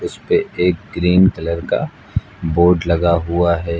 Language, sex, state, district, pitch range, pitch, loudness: Hindi, male, Uttar Pradesh, Lucknow, 85-105 Hz, 85 Hz, -17 LUFS